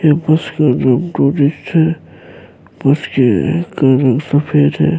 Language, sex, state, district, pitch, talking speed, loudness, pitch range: Urdu, male, Bihar, Saharsa, 145 Hz, 145 wpm, -14 LUFS, 130-155 Hz